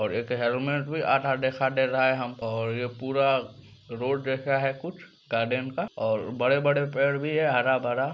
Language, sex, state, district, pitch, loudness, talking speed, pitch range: Maithili, male, Bihar, Supaul, 130 Hz, -26 LUFS, 185 wpm, 125-140 Hz